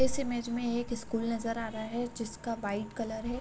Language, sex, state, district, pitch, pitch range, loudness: Hindi, female, Bihar, Sitamarhi, 230 Hz, 225-240 Hz, -34 LUFS